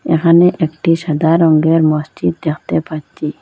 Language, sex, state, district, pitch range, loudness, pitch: Bengali, female, Assam, Hailakandi, 155-165 Hz, -14 LUFS, 160 Hz